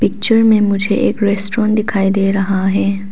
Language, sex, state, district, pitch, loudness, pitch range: Hindi, female, Arunachal Pradesh, Papum Pare, 200 Hz, -14 LUFS, 195-215 Hz